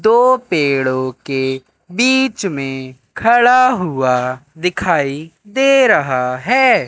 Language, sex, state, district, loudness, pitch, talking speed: Hindi, male, Madhya Pradesh, Katni, -15 LUFS, 165 Hz, 95 wpm